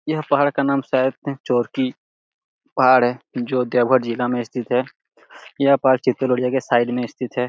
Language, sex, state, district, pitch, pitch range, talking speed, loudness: Hindi, male, Bihar, Lakhisarai, 130 Hz, 125-140 Hz, 170 wpm, -20 LUFS